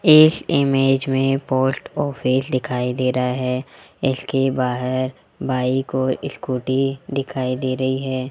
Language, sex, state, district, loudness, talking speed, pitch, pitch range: Hindi, male, Rajasthan, Jaipur, -20 LUFS, 130 wpm, 130 Hz, 130-135 Hz